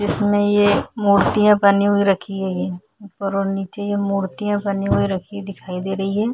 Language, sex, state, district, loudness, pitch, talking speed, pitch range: Hindi, female, Chhattisgarh, Kabirdham, -19 LUFS, 200 Hz, 170 wpm, 195-205 Hz